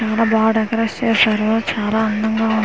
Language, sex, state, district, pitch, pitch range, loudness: Telugu, female, Andhra Pradesh, Manyam, 220 Hz, 220-225 Hz, -17 LUFS